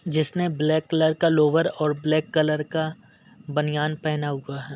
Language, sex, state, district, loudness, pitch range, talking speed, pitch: Hindi, male, Bihar, Gaya, -23 LUFS, 150-160 Hz, 165 wpm, 155 Hz